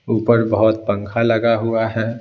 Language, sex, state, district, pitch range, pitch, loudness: Hindi, male, Bihar, Patna, 110-115 Hz, 115 Hz, -17 LUFS